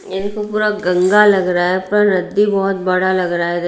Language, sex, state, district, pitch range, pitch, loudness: Hindi, female, Bihar, Patna, 180-205 Hz, 190 Hz, -15 LUFS